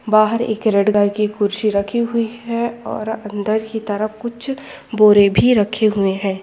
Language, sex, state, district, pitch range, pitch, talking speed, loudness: Hindi, female, Jharkhand, Jamtara, 205-230 Hz, 215 Hz, 175 wpm, -17 LUFS